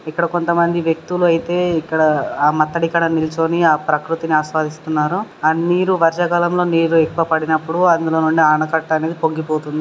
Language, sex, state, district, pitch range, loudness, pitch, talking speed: Telugu, male, Karnataka, Dharwad, 155-170 Hz, -17 LUFS, 165 Hz, 140 wpm